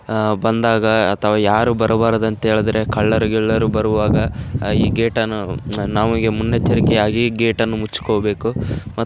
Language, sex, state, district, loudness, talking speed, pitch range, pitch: Kannada, male, Karnataka, Raichur, -17 LUFS, 140 wpm, 105-115 Hz, 110 Hz